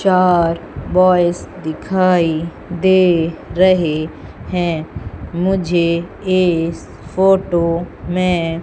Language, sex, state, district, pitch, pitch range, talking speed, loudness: Hindi, female, Madhya Pradesh, Umaria, 175 Hz, 170-185 Hz, 70 wpm, -16 LUFS